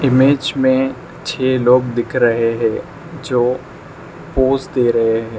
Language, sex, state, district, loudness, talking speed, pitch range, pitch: Hindi, male, Arunachal Pradesh, Lower Dibang Valley, -16 LUFS, 135 wpm, 120-135 Hz, 130 Hz